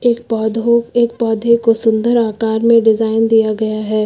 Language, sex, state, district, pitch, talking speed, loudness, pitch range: Hindi, female, Uttar Pradesh, Lucknow, 225 Hz, 175 wpm, -14 LUFS, 220-235 Hz